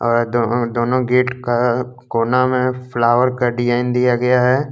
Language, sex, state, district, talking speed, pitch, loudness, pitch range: Hindi, male, Jharkhand, Deoghar, 180 wpm, 125 Hz, -17 LUFS, 120-125 Hz